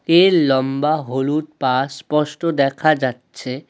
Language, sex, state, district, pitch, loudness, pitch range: Bengali, male, West Bengal, Alipurduar, 145 Hz, -18 LUFS, 130-155 Hz